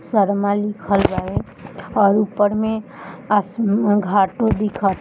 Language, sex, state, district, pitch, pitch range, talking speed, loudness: Bhojpuri, female, Bihar, Gopalganj, 205 Hz, 200-215 Hz, 120 wpm, -19 LUFS